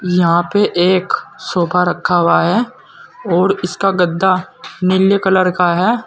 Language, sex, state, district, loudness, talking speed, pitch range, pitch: Hindi, male, Uttar Pradesh, Saharanpur, -14 LUFS, 140 wpm, 180-195 Hz, 185 Hz